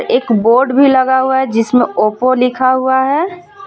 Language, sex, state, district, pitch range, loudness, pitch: Hindi, female, Jharkhand, Ranchi, 250-270 Hz, -12 LUFS, 260 Hz